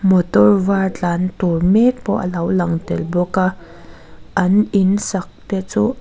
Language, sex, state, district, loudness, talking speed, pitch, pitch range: Mizo, female, Mizoram, Aizawl, -17 LUFS, 170 wpm, 185 Hz, 175-200 Hz